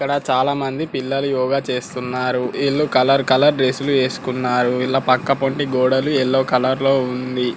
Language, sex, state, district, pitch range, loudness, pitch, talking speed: Telugu, male, Telangana, Karimnagar, 125-135 Hz, -18 LUFS, 130 Hz, 150 wpm